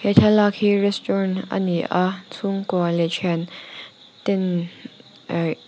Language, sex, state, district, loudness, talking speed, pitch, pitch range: Mizo, female, Mizoram, Aizawl, -21 LUFS, 105 wpm, 190 Hz, 175-200 Hz